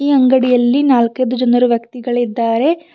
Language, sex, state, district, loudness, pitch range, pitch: Kannada, female, Karnataka, Bidar, -14 LUFS, 240-265 Hz, 250 Hz